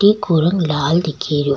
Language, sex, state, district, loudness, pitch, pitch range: Rajasthani, female, Rajasthan, Nagaur, -17 LUFS, 160 Hz, 150-180 Hz